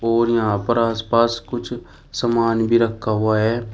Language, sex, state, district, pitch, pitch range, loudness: Hindi, male, Uttar Pradesh, Shamli, 115 Hz, 110-115 Hz, -19 LUFS